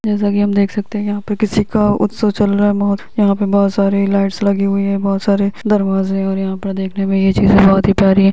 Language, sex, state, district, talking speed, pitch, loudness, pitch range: Hindi, female, Uttar Pradesh, Etah, 260 wpm, 200 Hz, -15 LUFS, 195-205 Hz